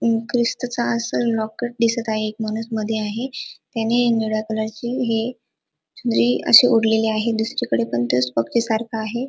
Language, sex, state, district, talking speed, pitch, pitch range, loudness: Marathi, female, Maharashtra, Dhule, 135 wpm, 225 Hz, 220-235 Hz, -20 LUFS